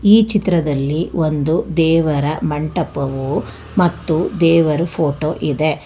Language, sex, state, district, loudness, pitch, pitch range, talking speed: Kannada, female, Karnataka, Bangalore, -17 LUFS, 160 Hz, 150-170 Hz, 90 wpm